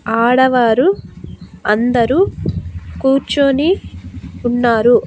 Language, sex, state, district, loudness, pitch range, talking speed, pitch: Telugu, female, Andhra Pradesh, Annamaya, -14 LUFS, 235-275 Hz, 45 wpm, 245 Hz